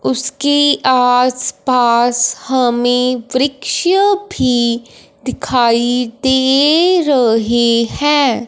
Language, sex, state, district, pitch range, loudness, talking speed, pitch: Hindi, female, Punjab, Fazilka, 240-280 Hz, -13 LUFS, 70 wpm, 255 Hz